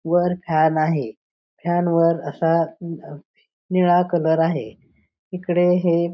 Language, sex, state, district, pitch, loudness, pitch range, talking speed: Marathi, female, Maharashtra, Pune, 170 Hz, -20 LUFS, 160-175 Hz, 105 wpm